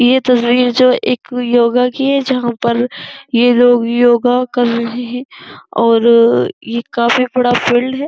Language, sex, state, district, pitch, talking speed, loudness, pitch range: Hindi, female, Uttar Pradesh, Jyotiba Phule Nagar, 245 Hz, 165 wpm, -13 LUFS, 235-250 Hz